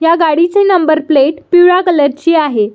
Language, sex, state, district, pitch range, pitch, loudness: Marathi, female, Maharashtra, Solapur, 295-350 Hz, 325 Hz, -10 LUFS